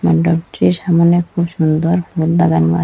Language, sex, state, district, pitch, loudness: Bengali, female, Assam, Hailakandi, 165 Hz, -14 LUFS